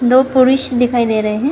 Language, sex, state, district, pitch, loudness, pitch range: Hindi, female, Karnataka, Bangalore, 250 Hz, -13 LUFS, 240-260 Hz